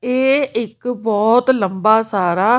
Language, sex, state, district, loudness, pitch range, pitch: Punjabi, female, Punjab, Kapurthala, -16 LUFS, 210-245 Hz, 225 Hz